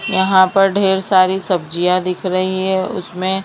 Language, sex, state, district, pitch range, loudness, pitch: Hindi, female, Maharashtra, Mumbai Suburban, 185-190 Hz, -15 LUFS, 190 Hz